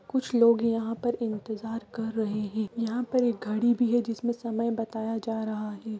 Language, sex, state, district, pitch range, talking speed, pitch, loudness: Hindi, female, Bihar, East Champaran, 220-235 Hz, 200 wpm, 225 Hz, -28 LUFS